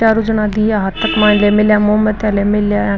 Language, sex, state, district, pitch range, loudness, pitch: Marwari, female, Rajasthan, Nagaur, 205-215 Hz, -13 LUFS, 210 Hz